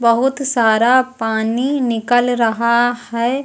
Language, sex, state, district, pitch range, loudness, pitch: Hindi, female, Uttar Pradesh, Lucknow, 230-255 Hz, -16 LUFS, 240 Hz